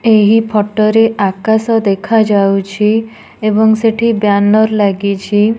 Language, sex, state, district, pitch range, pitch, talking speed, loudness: Odia, female, Odisha, Nuapada, 205-225 Hz, 215 Hz, 95 wpm, -12 LUFS